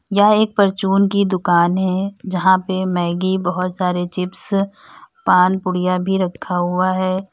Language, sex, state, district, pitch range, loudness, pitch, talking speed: Hindi, female, Uttar Pradesh, Lalitpur, 180-195 Hz, -18 LUFS, 185 Hz, 145 wpm